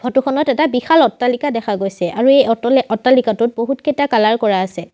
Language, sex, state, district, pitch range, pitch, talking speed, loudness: Assamese, female, Assam, Sonitpur, 220-270 Hz, 245 Hz, 180 wpm, -15 LUFS